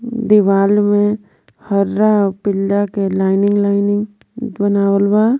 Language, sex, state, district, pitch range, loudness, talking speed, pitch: Bhojpuri, female, Jharkhand, Palamu, 200-210 Hz, -15 LUFS, 110 wpm, 205 Hz